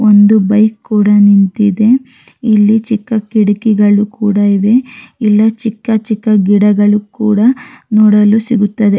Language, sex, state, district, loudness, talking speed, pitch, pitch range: Kannada, female, Karnataka, Raichur, -11 LUFS, 105 wpm, 215 Hz, 205-225 Hz